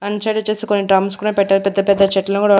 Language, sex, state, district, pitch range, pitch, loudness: Telugu, female, Andhra Pradesh, Annamaya, 195-205 Hz, 200 Hz, -16 LUFS